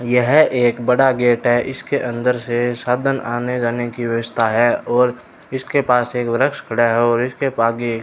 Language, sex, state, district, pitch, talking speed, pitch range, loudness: Hindi, male, Rajasthan, Bikaner, 120 Hz, 185 wpm, 120-125 Hz, -17 LUFS